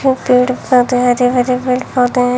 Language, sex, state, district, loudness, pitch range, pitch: Hindi, female, Uttar Pradesh, Shamli, -13 LUFS, 245-250 Hz, 250 Hz